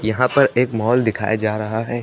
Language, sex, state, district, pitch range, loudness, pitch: Hindi, male, Uttar Pradesh, Lucknow, 110-125 Hz, -18 LUFS, 110 Hz